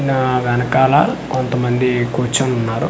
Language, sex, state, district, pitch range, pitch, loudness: Telugu, male, Andhra Pradesh, Manyam, 120-130 Hz, 125 Hz, -16 LUFS